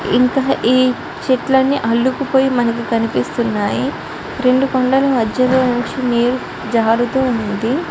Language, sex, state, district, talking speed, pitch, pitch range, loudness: Telugu, female, Andhra Pradesh, Chittoor, 100 wpm, 250 Hz, 235-265 Hz, -16 LUFS